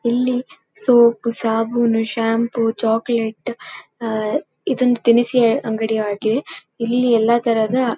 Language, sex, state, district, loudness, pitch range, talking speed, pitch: Kannada, female, Karnataka, Dakshina Kannada, -18 LUFS, 225-240 Hz, 100 wpm, 235 Hz